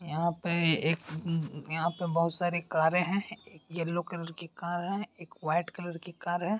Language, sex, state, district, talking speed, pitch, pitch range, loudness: Hindi, male, Bihar, Bhagalpur, 180 wpm, 170 Hz, 165-175 Hz, -31 LUFS